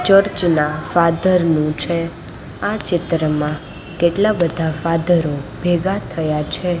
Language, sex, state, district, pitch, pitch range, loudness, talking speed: Gujarati, female, Gujarat, Gandhinagar, 170 Hz, 155-175 Hz, -18 LUFS, 115 wpm